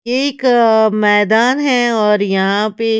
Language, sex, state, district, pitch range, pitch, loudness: Hindi, female, Haryana, Charkhi Dadri, 210-245 Hz, 225 Hz, -13 LUFS